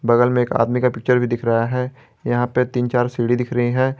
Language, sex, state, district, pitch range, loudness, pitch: Hindi, male, Jharkhand, Garhwa, 120-125 Hz, -19 LUFS, 125 Hz